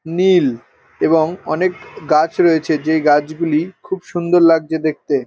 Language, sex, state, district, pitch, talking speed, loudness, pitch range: Bengali, male, West Bengal, North 24 Parganas, 160 Hz, 135 wpm, -16 LUFS, 155-175 Hz